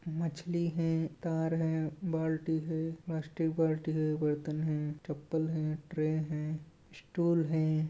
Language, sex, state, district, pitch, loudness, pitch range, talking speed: Hindi, male, Goa, North and South Goa, 160 Hz, -34 LUFS, 155-165 Hz, 120 wpm